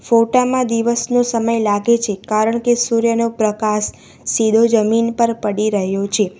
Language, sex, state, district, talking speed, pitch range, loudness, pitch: Gujarati, female, Gujarat, Valsad, 150 wpm, 215-235 Hz, -16 LUFS, 230 Hz